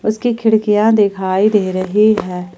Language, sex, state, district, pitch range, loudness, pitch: Hindi, female, Jharkhand, Ranchi, 190-215 Hz, -14 LUFS, 210 Hz